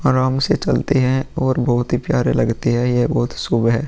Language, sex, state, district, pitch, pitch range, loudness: Hindi, male, Bihar, Vaishali, 125 Hz, 120-130 Hz, -18 LUFS